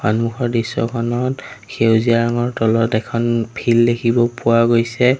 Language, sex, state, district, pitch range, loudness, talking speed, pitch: Assamese, male, Assam, Sonitpur, 115-120 Hz, -17 LUFS, 115 wpm, 115 Hz